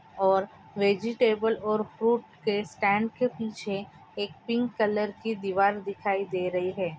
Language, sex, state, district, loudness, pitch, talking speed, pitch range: Hindi, female, Maharashtra, Pune, -28 LUFS, 205 Hz, 145 wpm, 195-225 Hz